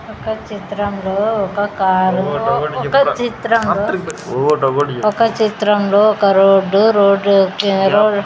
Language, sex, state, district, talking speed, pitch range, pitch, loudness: Telugu, female, Andhra Pradesh, Sri Satya Sai, 95 wpm, 195-215 Hz, 205 Hz, -15 LUFS